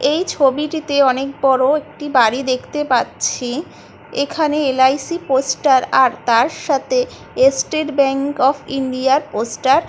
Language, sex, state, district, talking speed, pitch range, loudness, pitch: Bengali, female, West Bengal, Kolkata, 120 wpm, 260-295 Hz, -17 LUFS, 270 Hz